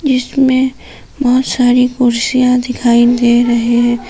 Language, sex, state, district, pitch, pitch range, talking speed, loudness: Hindi, female, Jharkhand, Palamu, 250 Hz, 240-255 Hz, 115 wpm, -12 LUFS